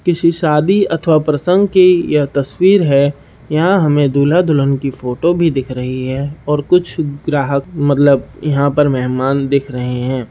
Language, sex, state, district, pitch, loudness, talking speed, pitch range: Hindi, male, Bihar, Saharsa, 145 Hz, -14 LUFS, 170 wpm, 135-165 Hz